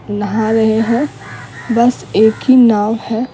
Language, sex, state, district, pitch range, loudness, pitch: Hindi, female, Bihar, Patna, 220-240 Hz, -13 LUFS, 225 Hz